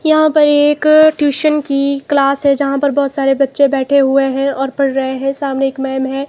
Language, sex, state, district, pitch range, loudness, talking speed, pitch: Hindi, female, Himachal Pradesh, Shimla, 270-290 Hz, -13 LUFS, 220 wpm, 275 Hz